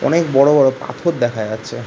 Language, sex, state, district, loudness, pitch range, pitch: Bengali, male, West Bengal, Kolkata, -16 LUFS, 120-150 Hz, 130 Hz